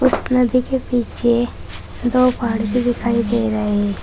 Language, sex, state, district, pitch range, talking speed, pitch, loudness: Hindi, female, Uttar Pradesh, Saharanpur, 230-250 Hz, 165 wpm, 240 Hz, -18 LUFS